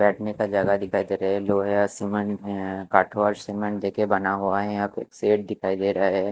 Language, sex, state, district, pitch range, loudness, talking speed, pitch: Hindi, male, Chandigarh, Chandigarh, 95-105 Hz, -24 LUFS, 235 wpm, 100 Hz